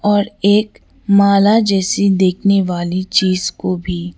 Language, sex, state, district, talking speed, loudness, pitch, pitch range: Hindi, female, Sikkim, Gangtok, 145 wpm, -14 LUFS, 195 Hz, 185-200 Hz